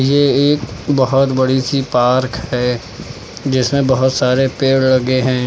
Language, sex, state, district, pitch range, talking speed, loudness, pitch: Hindi, male, Uttar Pradesh, Lucknow, 125-135 Hz, 145 wpm, -15 LUFS, 130 Hz